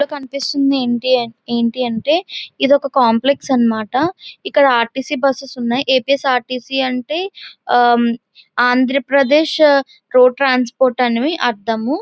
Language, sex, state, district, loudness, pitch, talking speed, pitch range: Telugu, female, Andhra Pradesh, Visakhapatnam, -16 LUFS, 260 Hz, 115 wpm, 245-280 Hz